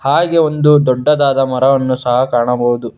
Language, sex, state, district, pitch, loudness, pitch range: Kannada, male, Karnataka, Bangalore, 135 Hz, -13 LUFS, 125-150 Hz